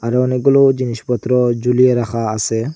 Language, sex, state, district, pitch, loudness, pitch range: Bengali, male, Assam, Hailakandi, 125 Hz, -15 LUFS, 115-130 Hz